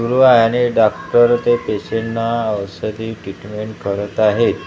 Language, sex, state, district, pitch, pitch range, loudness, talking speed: Marathi, male, Maharashtra, Gondia, 115 Hz, 105-120 Hz, -16 LUFS, 140 wpm